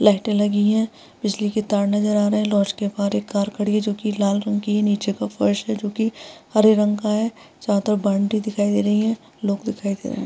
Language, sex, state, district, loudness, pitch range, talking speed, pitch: Hindi, female, Bihar, Vaishali, -21 LUFS, 205-215 Hz, 265 wpm, 210 Hz